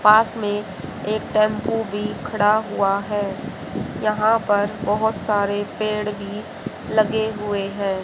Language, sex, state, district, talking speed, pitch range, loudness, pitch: Hindi, female, Haryana, Jhajjar, 125 wpm, 205-215 Hz, -22 LUFS, 210 Hz